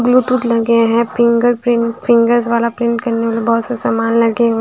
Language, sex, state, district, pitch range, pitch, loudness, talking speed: Hindi, female, Haryana, Charkhi Dadri, 230-240 Hz, 235 Hz, -14 LUFS, 180 wpm